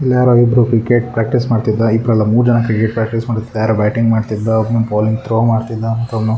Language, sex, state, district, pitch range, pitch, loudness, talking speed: Kannada, male, Karnataka, Shimoga, 110-115 Hz, 115 Hz, -14 LUFS, 190 wpm